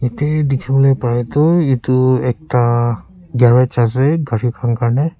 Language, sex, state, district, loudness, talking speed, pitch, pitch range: Nagamese, male, Nagaland, Kohima, -15 LUFS, 125 wpm, 130 Hz, 120-145 Hz